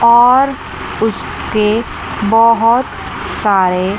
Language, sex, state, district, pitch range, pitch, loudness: Hindi, female, Chandigarh, Chandigarh, 210-235 Hz, 225 Hz, -13 LUFS